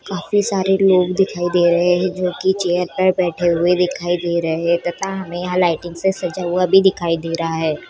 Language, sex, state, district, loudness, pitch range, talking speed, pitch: Chhattisgarhi, female, Chhattisgarh, Korba, -18 LUFS, 175-185 Hz, 210 wpm, 180 Hz